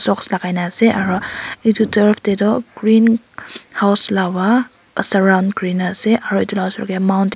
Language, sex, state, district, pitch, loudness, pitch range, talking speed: Nagamese, female, Nagaland, Kohima, 200 Hz, -16 LUFS, 190-220 Hz, 170 wpm